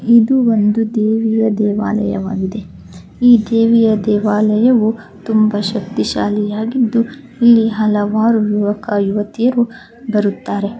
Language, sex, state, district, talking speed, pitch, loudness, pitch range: Kannada, female, Karnataka, Dakshina Kannada, 95 wpm, 215 Hz, -15 LUFS, 210-230 Hz